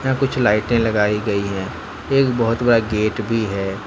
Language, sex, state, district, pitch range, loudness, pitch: Hindi, male, Jharkhand, Ranchi, 105-120 Hz, -19 LUFS, 110 Hz